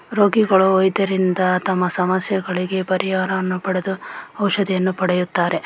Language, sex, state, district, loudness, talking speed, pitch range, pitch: Kannada, female, Karnataka, Shimoga, -19 LUFS, 85 wpm, 185-190 Hz, 190 Hz